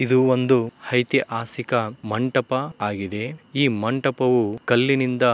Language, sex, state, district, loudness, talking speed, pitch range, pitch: Kannada, male, Karnataka, Dharwad, -22 LUFS, 100 wpm, 115-130 Hz, 125 Hz